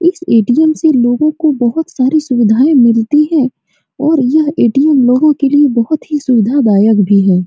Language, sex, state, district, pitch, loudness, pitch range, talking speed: Hindi, female, Bihar, Supaul, 275 Hz, -11 LUFS, 235-305 Hz, 160 wpm